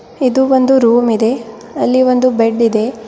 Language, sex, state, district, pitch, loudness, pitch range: Kannada, female, Karnataka, Bidar, 240 Hz, -12 LUFS, 225-255 Hz